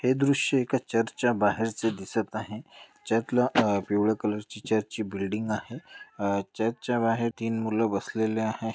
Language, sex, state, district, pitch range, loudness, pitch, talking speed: Marathi, male, Maharashtra, Dhule, 105-115 Hz, -28 LUFS, 110 Hz, 145 wpm